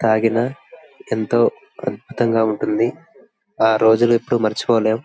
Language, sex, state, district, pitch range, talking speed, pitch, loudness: Telugu, male, Andhra Pradesh, Visakhapatnam, 110-120 Hz, 95 wpm, 115 Hz, -18 LUFS